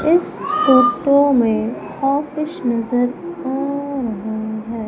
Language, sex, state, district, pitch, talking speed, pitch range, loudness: Hindi, female, Madhya Pradesh, Umaria, 270 Hz, 100 wpm, 230-300 Hz, -18 LUFS